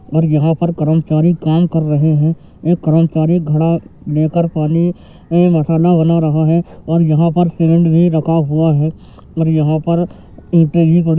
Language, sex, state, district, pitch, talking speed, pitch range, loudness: Hindi, male, Uttar Pradesh, Jyotiba Phule Nagar, 165 Hz, 170 wpm, 155-170 Hz, -14 LUFS